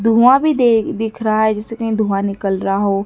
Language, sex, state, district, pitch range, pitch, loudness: Hindi, female, Madhya Pradesh, Dhar, 200-230 Hz, 220 Hz, -16 LUFS